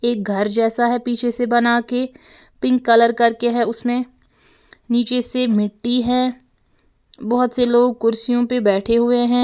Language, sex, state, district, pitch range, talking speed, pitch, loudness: Hindi, female, Uttar Pradesh, Lalitpur, 230-245 Hz, 160 wpm, 240 Hz, -18 LUFS